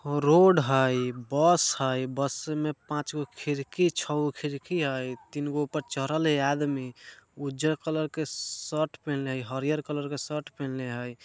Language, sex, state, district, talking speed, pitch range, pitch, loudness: Bajjika, male, Bihar, Vaishali, 145 wpm, 135-150 Hz, 145 Hz, -28 LUFS